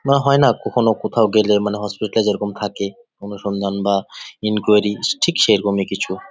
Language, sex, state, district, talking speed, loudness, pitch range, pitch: Bengali, male, West Bengal, Jalpaiguri, 160 wpm, -18 LUFS, 100-110 Hz, 105 Hz